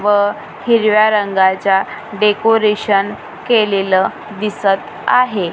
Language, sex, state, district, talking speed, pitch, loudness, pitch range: Marathi, female, Maharashtra, Gondia, 75 wpm, 205 Hz, -14 LUFS, 195-215 Hz